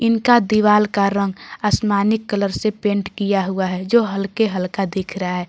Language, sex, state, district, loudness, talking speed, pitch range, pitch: Hindi, female, Jharkhand, Garhwa, -18 LUFS, 185 wpm, 195-215 Hz, 200 Hz